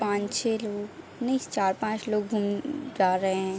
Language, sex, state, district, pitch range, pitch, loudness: Hindi, female, Bihar, Araria, 195-225 Hz, 210 Hz, -28 LUFS